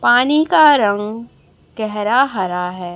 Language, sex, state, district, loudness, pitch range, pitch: Hindi, male, Chhattisgarh, Raipur, -15 LUFS, 200-270 Hz, 215 Hz